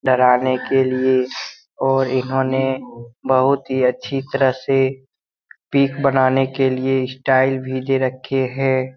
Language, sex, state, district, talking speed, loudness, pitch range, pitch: Hindi, male, Bihar, Lakhisarai, 125 wpm, -18 LUFS, 130-135 Hz, 130 Hz